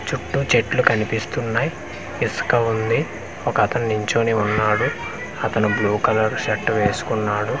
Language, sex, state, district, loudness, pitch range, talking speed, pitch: Telugu, male, Andhra Pradesh, Manyam, -20 LUFS, 105-115 Hz, 100 wpm, 110 Hz